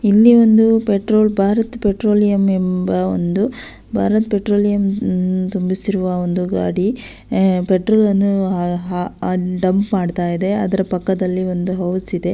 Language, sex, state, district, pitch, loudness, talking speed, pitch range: Kannada, female, Karnataka, Belgaum, 190 Hz, -17 LUFS, 110 wpm, 180-205 Hz